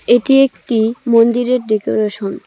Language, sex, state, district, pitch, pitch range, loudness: Bengali, female, West Bengal, Cooch Behar, 230 Hz, 215-245 Hz, -14 LUFS